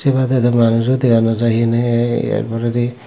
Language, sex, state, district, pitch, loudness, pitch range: Chakma, male, Tripura, Dhalai, 120 Hz, -15 LUFS, 115-120 Hz